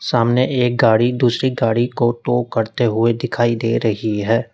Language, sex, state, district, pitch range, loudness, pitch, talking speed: Hindi, male, Uttar Pradesh, Lalitpur, 115-125 Hz, -17 LUFS, 120 Hz, 170 wpm